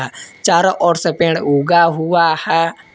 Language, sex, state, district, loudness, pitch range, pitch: Hindi, male, Jharkhand, Palamu, -14 LUFS, 160-170 Hz, 165 Hz